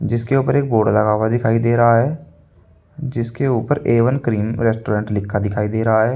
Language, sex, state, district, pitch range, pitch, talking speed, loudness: Hindi, male, Uttar Pradesh, Saharanpur, 105-125 Hz, 115 Hz, 205 wpm, -17 LUFS